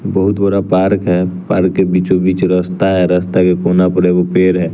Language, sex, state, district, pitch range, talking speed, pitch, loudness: Hindi, male, Bihar, West Champaran, 90-95 Hz, 215 wpm, 90 Hz, -13 LUFS